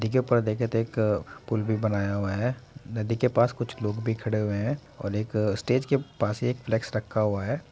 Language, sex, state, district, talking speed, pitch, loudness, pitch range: Hindi, male, Uttar Pradesh, Muzaffarnagar, 225 wpm, 110 Hz, -27 LUFS, 105-125 Hz